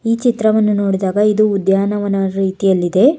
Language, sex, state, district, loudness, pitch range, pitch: Kannada, female, Karnataka, Bangalore, -15 LUFS, 195-215 Hz, 200 Hz